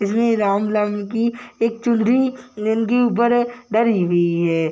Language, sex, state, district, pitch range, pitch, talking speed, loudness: Hindi, male, Bihar, Gopalganj, 205-240 Hz, 225 Hz, 155 wpm, -19 LUFS